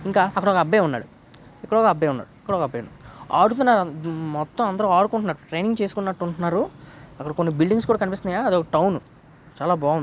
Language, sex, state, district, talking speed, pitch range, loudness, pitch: Telugu, male, Andhra Pradesh, Guntur, 120 wpm, 150-205 Hz, -22 LUFS, 175 Hz